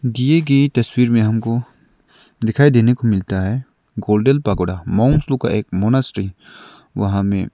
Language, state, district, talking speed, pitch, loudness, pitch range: Hindi, Arunachal Pradesh, Lower Dibang Valley, 150 wpm, 115 Hz, -17 LUFS, 100-130 Hz